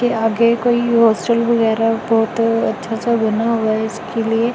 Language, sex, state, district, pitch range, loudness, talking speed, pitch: Hindi, female, Delhi, New Delhi, 225-235 Hz, -16 LUFS, 160 wpm, 225 Hz